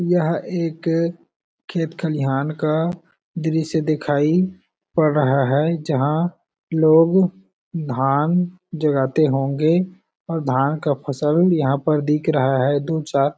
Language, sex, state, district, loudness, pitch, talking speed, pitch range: Hindi, male, Chhattisgarh, Balrampur, -20 LUFS, 160 Hz, 115 wpm, 145-170 Hz